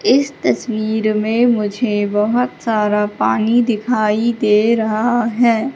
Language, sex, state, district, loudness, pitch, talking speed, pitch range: Hindi, female, Madhya Pradesh, Katni, -16 LUFS, 225 Hz, 115 wpm, 215-240 Hz